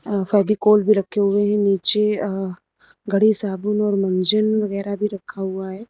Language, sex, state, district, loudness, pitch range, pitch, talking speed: Hindi, female, Uttar Pradesh, Lucknow, -18 LUFS, 195-210 Hz, 205 Hz, 165 wpm